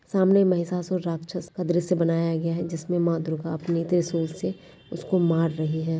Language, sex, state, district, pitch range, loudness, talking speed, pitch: Hindi, female, Uttarakhand, Tehri Garhwal, 165-180 Hz, -25 LUFS, 180 wpm, 170 Hz